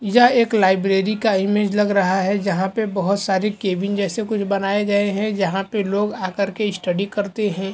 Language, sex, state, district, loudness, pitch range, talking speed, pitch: Hindi, male, Chhattisgarh, Bilaspur, -20 LUFS, 195-210 Hz, 210 wpm, 200 Hz